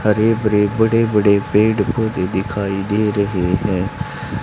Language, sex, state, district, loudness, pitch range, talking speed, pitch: Hindi, male, Haryana, Charkhi Dadri, -17 LUFS, 95-110 Hz, 135 wpm, 105 Hz